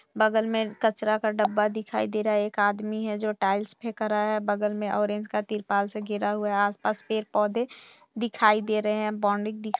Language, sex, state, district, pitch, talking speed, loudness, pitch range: Hindi, female, Bihar, Purnia, 215 Hz, 220 wpm, -26 LUFS, 210-220 Hz